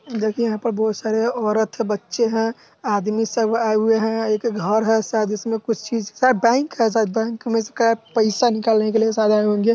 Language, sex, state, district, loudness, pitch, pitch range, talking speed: Hindi, male, Bihar, Sitamarhi, -20 LUFS, 225 Hz, 215-230 Hz, 215 wpm